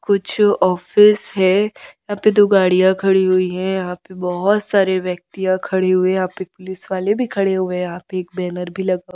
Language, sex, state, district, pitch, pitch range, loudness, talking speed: Hindi, female, Chhattisgarh, Raipur, 190 Hz, 185-195 Hz, -17 LUFS, 205 wpm